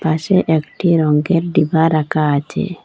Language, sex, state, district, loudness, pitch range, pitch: Bengali, female, Assam, Hailakandi, -16 LUFS, 155-170 Hz, 160 Hz